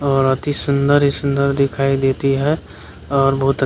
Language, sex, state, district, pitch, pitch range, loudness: Hindi, male, Bihar, Kishanganj, 140 Hz, 135-140 Hz, -17 LUFS